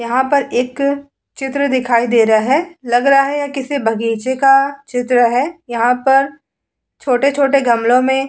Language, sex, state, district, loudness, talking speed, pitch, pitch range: Hindi, female, Uttar Pradesh, Muzaffarnagar, -15 LUFS, 165 wpm, 265 Hz, 245-280 Hz